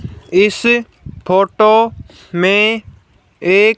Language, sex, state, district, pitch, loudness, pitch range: Hindi, female, Haryana, Charkhi Dadri, 205 Hz, -13 LUFS, 185-220 Hz